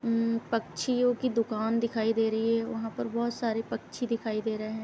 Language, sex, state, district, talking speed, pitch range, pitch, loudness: Hindi, female, Uttar Pradesh, Etah, 210 wpm, 220-235 Hz, 230 Hz, -30 LUFS